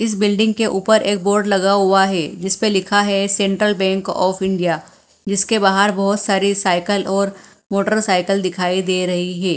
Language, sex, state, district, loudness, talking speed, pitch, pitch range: Hindi, female, Bihar, Katihar, -17 LUFS, 170 wpm, 195 Hz, 190-205 Hz